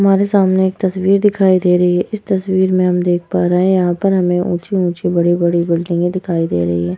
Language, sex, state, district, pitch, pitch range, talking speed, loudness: Hindi, female, Uttar Pradesh, Etah, 180 Hz, 175-190 Hz, 225 wpm, -15 LUFS